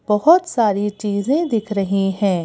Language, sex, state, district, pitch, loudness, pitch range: Hindi, female, Madhya Pradesh, Bhopal, 210 Hz, -18 LUFS, 200-240 Hz